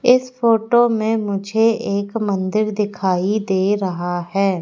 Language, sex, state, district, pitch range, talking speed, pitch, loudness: Hindi, female, Madhya Pradesh, Katni, 195-225 Hz, 130 wpm, 205 Hz, -18 LUFS